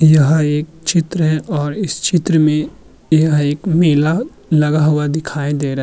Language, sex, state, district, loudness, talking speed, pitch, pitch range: Hindi, male, Uttar Pradesh, Muzaffarnagar, -15 LUFS, 165 wpm, 155 Hz, 145-160 Hz